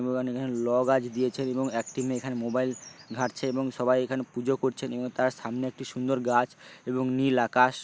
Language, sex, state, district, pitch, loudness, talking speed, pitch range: Bengali, male, West Bengal, Paschim Medinipur, 130 Hz, -28 LUFS, 190 wpm, 125-130 Hz